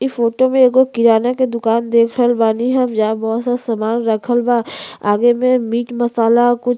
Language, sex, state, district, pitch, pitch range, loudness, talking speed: Bhojpuri, female, Uttar Pradesh, Gorakhpur, 240 Hz, 230-245 Hz, -15 LUFS, 205 wpm